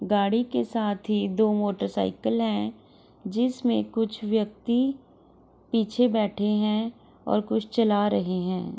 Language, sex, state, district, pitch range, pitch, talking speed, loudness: Hindi, female, Bihar, Gopalganj, 135-225 Hz, 210 Hz, 135 wpm, -26 LUFS